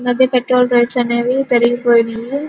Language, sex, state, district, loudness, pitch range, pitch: Telugu, female, Andhra Pradesh, Guntur, -14 LUFS, 240-255 Hz, 245 Hz